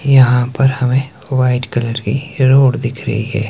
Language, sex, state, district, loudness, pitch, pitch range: Hindi, male, Himachal Pradesh, Shimla, -14 LUFS, 130 Hz, 125-135 Hz